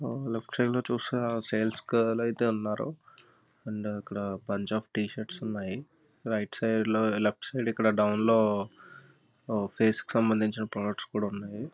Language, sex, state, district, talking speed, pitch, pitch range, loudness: Telugu, male, Andhra Pradesh, Visakhapatnam, 140 wpm, 110 Hz, 105-115 Hz, -30 LUFS